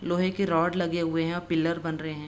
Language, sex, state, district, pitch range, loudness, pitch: Hindi, female, Bihar, Begusarai, 165-175 Hz, -27 LUFS, 170 Hz